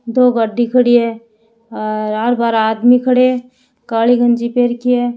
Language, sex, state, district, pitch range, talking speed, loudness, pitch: Hindi, female, Rajasthan, Churu, 230-245 Hz, 175 wpm, -14 LUFS, 240 Hz